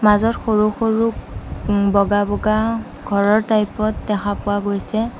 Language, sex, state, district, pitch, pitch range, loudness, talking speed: Assamese, female, Assam, Sonitpur, 210 Hz, 205-220 Hz, -19 LUFS, 125 wpm